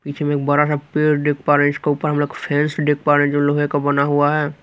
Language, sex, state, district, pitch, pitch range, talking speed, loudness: Hindi, male, Haryana, Rohtak, 145 Hz, 145-150 Hz, 300 wpm, -18 LUFS